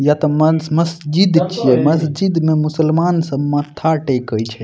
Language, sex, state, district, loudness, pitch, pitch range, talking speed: Maithili, male, Bihar, Madhepura, -16 LUFS, 155 Hz, 145-165 Hz, 140 wpm